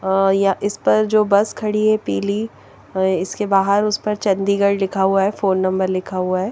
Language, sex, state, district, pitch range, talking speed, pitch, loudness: Hindi, female, Chandigarh, Chandigarh, 190-210 Hz, 210 wpm, 195 Hz, -18 LUFS